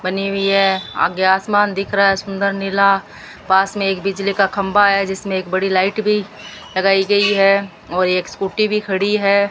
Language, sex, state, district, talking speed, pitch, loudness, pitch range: Hindi, female, Rajasthan, Bikaner, 195 wpm, 195 Hz, -16 LUFS, 190-200 Hz